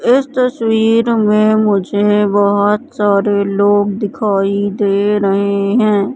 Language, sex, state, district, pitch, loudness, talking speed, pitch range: Hindi, female, Madhya Pradesh, Katni, 205 Hz, -13 LUFS, 105 wpm, 200-215 Hz